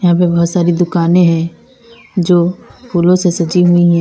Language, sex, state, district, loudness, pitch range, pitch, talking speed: Hindi, female, Uttar Pradesh, Lalitpur, -12 LUFS, 170-180 Hz, 175 Hz, 165 wpm